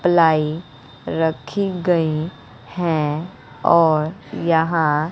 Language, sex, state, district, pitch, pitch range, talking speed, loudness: Hindi, female, Bihar, West Champaran, 160 Hz, 155-170 Hz, 70 wpm, -19 LUFS